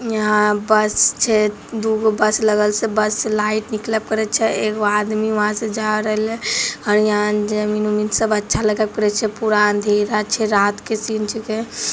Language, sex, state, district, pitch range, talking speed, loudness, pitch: Maithili, female, Bihar, Begusarai, 210-220 Hz, 175 wpm, -18 LUFS, 215 Hz